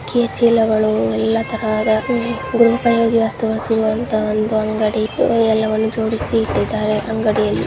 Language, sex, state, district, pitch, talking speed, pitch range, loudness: Kannada, female, Karnataka, Mysore, 220 Hz, 110 wpm, 215-230 Hz, -17 LUFS